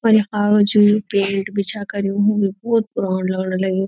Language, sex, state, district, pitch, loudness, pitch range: Garhwali, female, Uttarakhand, Uttarkashi, 200 Hz, -18 LUFS, 195-210 Hz